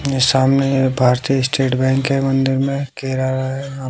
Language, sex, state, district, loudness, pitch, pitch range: Hindi, male, Bihar, West Champaran, -17 LUFS, 135 Hz, 130-135 Hz